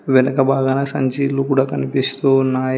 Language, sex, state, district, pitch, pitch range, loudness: Telugu, female, Telangana, Hyderabad, 135 Hz, 130-135 Hz, -17 LUFS